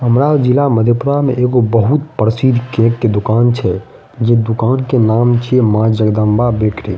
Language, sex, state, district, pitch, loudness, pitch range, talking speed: Maithili, male, Bihar, Madhepura, 120 Hz, -13 LUFS, 110-125 Hz, 180 wpm